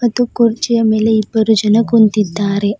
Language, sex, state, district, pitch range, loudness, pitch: Kannada, female, Karnataka, Bidar, 210-230 Hz, -13 LUFS, 220 Hz